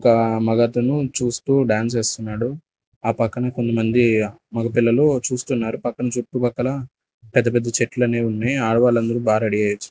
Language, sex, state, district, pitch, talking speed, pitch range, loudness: Telugu, male, Andhra Pradesh, Sri Satya Sai, 120 Hz, 125 wpm, 115-125 Hz, -20 LUFS